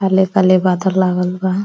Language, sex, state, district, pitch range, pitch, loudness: Bhojpuri, female, Uttar Pradesh, Deoria, 185-190 Hz, 185 Hz, -15 LUFS